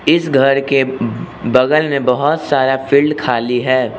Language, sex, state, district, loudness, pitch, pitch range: Hindi, male, Arunachal Pradesh, Lower Dibang Valley, -14 LUFS, 135 Hz, 130-145 Hz